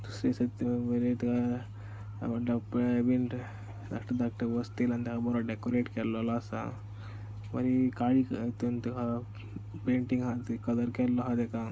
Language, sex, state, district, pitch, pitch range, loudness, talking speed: Konkani, male, Goa, North and South Goa, 120 Hz, 110-120 Hz, -32 LUFS, 55 wpm